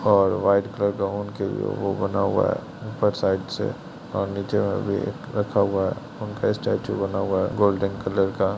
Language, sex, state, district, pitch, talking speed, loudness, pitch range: Hindi, male, Bihar, Jamui, 100 Hz, 195 wpm, -24 LUFS, 95-100 Hz